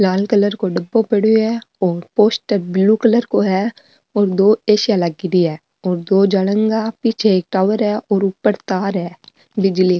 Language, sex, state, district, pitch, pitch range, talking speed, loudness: Marwari, female, Rajasthan, Nagaur, 200 Hz, 185-220 Hz, 180 wpm, -16 LUFS